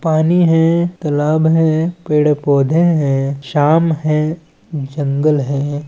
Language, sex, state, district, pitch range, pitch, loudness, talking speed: Chhattisgarhi, male, Chhattisgarh, Balrampur, 145-165 Hz, 155 Hz, -15 LUFS, 110 wpm